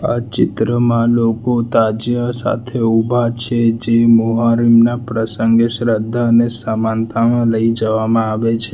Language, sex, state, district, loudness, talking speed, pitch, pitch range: Gujarati, male, Gujarat, Valsad, -15 LUFS, 115 wpm, 115 Hz, 115-120 Hz